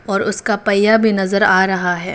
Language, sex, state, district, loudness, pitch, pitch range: Hindi, female, Arunachal Pradesh, Papum Pare, -15 LUFS, 200 Hz, 190-210 Hz